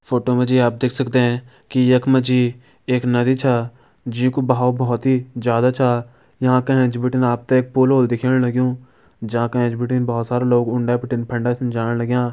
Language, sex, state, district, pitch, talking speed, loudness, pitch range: Hindi, male, Uttarakhand, Uttarkashi, 125 Hz, 200 wpm, -18 LUFS, 120-130 Hz